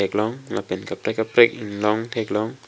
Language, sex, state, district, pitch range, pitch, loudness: Karbi, male, Assam, Karbi Anglong, 105-115 Hz, 110 Hz, -22 LUFS